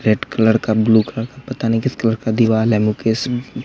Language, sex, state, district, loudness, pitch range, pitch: Hindi, male, Bihar, West Champaran, -17 LUFS, 110-120 Hz, 115 Hz